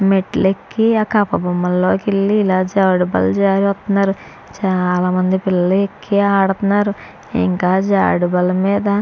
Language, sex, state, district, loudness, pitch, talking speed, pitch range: Telugu, female, Andhra Pradesh, Chittoor, -16 LUFS, 195 Hz, 100 wpm, 185-200 Hz